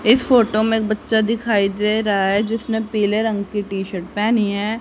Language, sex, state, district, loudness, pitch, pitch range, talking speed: Hindi, female, Haryana, Rohtak, -19 LUFS, 215 Hz, 205-225 Hz, 210 wpm